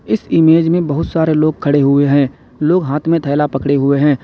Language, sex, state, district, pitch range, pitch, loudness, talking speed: Hindi, male, Uttar Pradesh, Lalitpur, 140-160 Hz, 145 Hz, -14 LUFS, 225 wpm